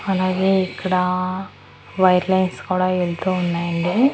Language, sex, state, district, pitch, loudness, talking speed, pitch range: Telugu, female, Andhra Pradesh, Annamaya, 185 Hz, -20 LUFS, 100 wpm, 180-190 Hz